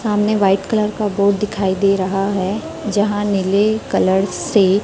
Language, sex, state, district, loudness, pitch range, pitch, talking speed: Hindi, female, Chhattisgarh, Raipur, -17 LUFS, 195-210 Hz, 200 Hz, 160 wpm